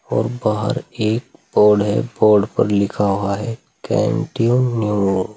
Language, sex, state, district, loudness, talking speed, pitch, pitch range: Hindi, male, Uttar Pradesh, Saharanpur, -18 LUFS, 135 wpm, 105 Hz, 100-120 Hz